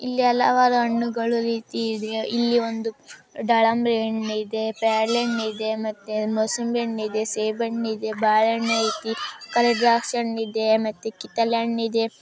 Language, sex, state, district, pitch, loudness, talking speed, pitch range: Kannada, female, Karnataka, Raichur, 225 Hz, -23 LUFS, 145 wpm, 220-235 Hz